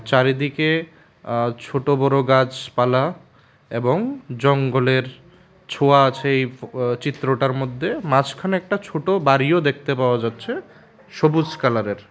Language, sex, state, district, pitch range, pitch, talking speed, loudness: Bengali, male, Tripura, West Tripura, 130-160 Hz, 135 Hz, 105 wpm, -20 LUFS